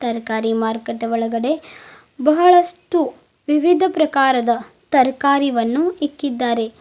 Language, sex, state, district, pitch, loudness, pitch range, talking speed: Kannada, female, Karnataka, Bidar, 270 Hz, -18 LUFS, 230-310 Hz, 70 wpm